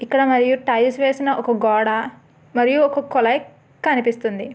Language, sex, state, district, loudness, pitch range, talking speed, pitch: Telugu, female, Andhra Pradesh, Srikakulam, -18 LUFS, 235-270 Hz, 130 wpm, 250 Hz